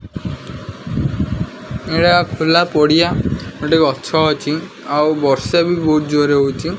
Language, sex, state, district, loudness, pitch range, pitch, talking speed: Odia, male, Odisha, Khordha, -16 LUFS, 150-170 Hz, 155 Hz, 115 wpm